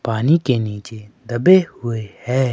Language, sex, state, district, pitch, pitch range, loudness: Hindi, male, Himachal Pradesh, Shimla, 120 Hz, 110-130 Hz, -18 LUFS